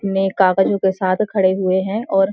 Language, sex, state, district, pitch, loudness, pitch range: Hindi, female, Uttarakhand, Uttarkashi, 190 Hz, -17 LUFS, 190-195 Hz